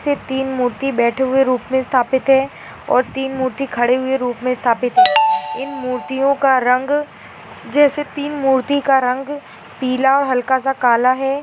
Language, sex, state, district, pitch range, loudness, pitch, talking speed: Hindi, female, Bihar, Purnia, 250-275 Hz, -17 LUFS, 265 Hz, 165 wpm